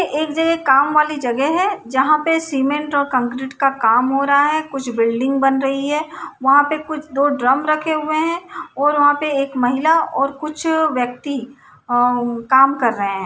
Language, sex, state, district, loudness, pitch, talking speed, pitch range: Hindi, female, Bihar, Saran, -17 LUFS, 280 Hz, 190 wpm, 260-305 Hz